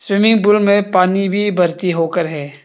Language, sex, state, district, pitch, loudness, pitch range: Hindi, male, Arunachal Pradesh, Papum Pare, 190 Hz, -14 LUFS, 170-205 Hz